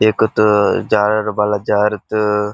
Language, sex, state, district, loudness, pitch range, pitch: Telugu, male, Andhra Pradesh, Krishna, -15 LUFS, 105-110 Hz, 105 Hz